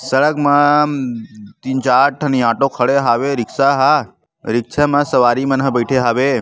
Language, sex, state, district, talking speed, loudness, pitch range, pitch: Chhattisgarhi, male, Chhattisgarh, Bastar, 160 wpm, -15 LUFS, 120-140 Hz, 135 Hz